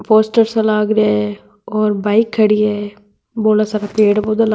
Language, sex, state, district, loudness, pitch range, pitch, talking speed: Marwari, female, Rajasthan, Nagaur, -15 LUFS, 205-220 Hz, 215 Hz, 195 wpm